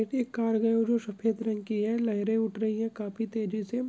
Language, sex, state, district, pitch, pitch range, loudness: Hindi, female, Andhra Pradesh, Krishna, 225 Hz, 215-230 Hz, -29 LUFS